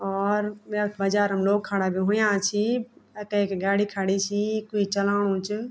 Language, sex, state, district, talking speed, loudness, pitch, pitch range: Garhwali, female, Uttarakhand, Tehri Garhwal, 170 wpm, -25 LUFS, 205 Hz, 195-210 Hz